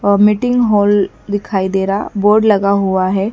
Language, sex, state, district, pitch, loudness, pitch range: Hindi, female, Madhya Pradesh, Dhar, 205 Hz, -14 LUFS, 195-210 Hz